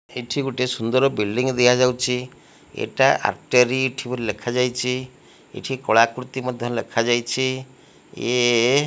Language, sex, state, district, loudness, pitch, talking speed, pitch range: Odia, male, Odisha, Malkangiri, -21 LUFS, 125 Hz, 100 wpm, 120-130 Hz